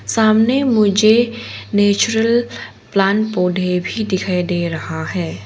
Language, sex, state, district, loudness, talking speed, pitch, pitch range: Hindi, female, Arunachal Pradesh, Longding, -16 LUFS, 110 wpm, 205 Hz, 180-220 Hz